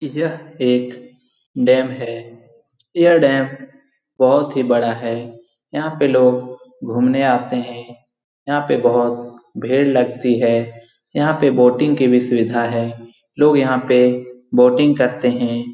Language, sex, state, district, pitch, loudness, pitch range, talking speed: Hindi, male, Bihar, Lakhisarai, 125 Hz, -16 LUFS, 120-135 Hz, 135 wpm